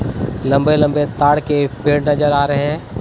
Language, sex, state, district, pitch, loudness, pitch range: Hindi, male, Bihar, Katihar, 145 Hz, -16 LUFS, 140-150 Hz